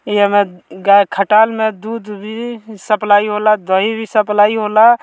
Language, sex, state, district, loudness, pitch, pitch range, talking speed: Bhojpuri, male, Bihar, Muzaffarpur, -14 LUFS, 210 Hz, 205-220 Hz, 165 wpm